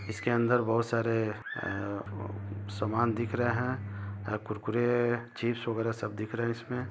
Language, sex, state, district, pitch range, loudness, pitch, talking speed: Hindi, male, Bihar, Gopalganj, 105-120 Hz, -32 LUFS, 115 Hz, 140 wpm